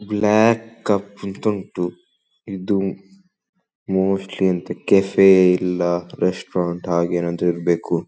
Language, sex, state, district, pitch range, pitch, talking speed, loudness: Kannada, male, Karnataka, Dakshina Kannada, 90-105 Hz, 95 Hz, 90 wpm, -19 LUFS